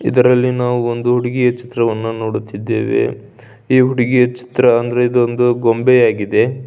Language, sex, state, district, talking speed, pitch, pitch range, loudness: Kannada, male, Karnataka, Belgaum, 100 wpm, 125 Hz, 120-125 Hz, -15 LUFS